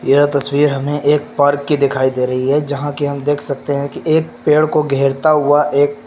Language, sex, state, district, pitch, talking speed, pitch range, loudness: Hindi, male, Uttar Pradesh, Lucknow, 145 Hz, 225 wpm, 140-150 Hz, -15 LUFS